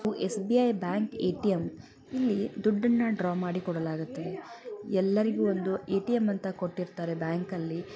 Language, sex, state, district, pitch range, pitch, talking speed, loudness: Kannada, female, Karnataka, Belgaum, 180-215 Hz, 195 Hz, 105 wpm, -30 LUFS